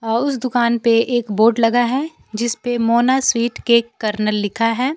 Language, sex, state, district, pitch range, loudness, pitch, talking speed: Hindi, female, Bihar, Kaimur, 230-245 Hz, -17 LUFS, 235 Hz, 180 wpm